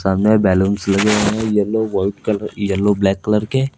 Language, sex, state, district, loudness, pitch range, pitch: Hindi, male, Uttar Pradesh, Lalitpur, -17 LUFS, 100-110 Hz, 105 Hz